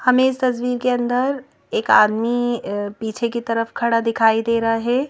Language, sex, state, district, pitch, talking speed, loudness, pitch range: Hindi, female, Madhya Pradesh, Bhopal, 235 Hz, 175 wpm, -19 LUFS, 230-250 Hz